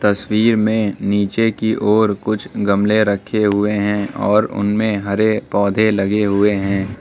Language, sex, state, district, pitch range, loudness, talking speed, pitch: Hindi, male, Uttar Pradesh, Lucknow, 100-110 Hz, -17 LUFS, 145 wpm, 105 Hz